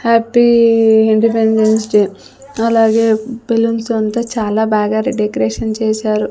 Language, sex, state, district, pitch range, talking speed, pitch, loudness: Telugu, female, Andhra Pradesh, Sri Satya Sai, 215-230 Hz, 115 wpm, 220 Hz, -13 LUFS